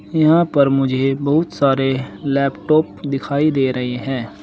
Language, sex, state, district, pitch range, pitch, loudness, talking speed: Hindi, male, Uttar Pradesh, Saharanpur, 135-150 Hz, 135 Hz, -17 LUFS, 135 wpm